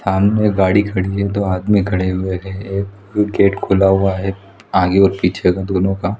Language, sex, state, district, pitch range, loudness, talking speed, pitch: Hindi, male, Chhattisgarh, Raigarh, 95-100 Hz, -16 LUFS, 215 wpm, 95 Hz